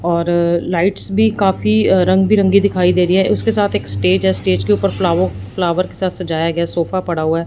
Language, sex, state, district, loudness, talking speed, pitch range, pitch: Hindi, male, Punjab, Fazilka, -15 LUFS, 225 wpm, 165-190 Hz, 175 Hz